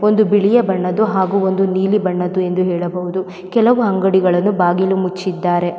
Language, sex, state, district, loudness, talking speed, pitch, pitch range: Kannada, female, Karnataka, Mysore, -16 LUFS, 145 wpm, 190 Hz, 180-200 Hz